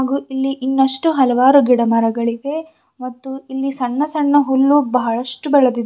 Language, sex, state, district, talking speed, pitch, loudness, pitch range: Kannada, female, Karnataka, Bidar, 135 wpm, 265 Hz, -16 LUFS, 250-280 Hz